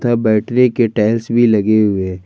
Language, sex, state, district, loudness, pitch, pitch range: Hindi, male, Jharkhand, Ranchi, -14 LUFS, 110 Hz, 105-120 Hz